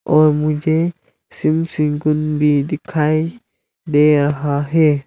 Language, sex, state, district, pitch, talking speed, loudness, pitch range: Hindi, male, Arunachal Pradesh, Lower Dibang Valley, 150 Hz, 120 wpm, -17 LUFS, 150-155 Hz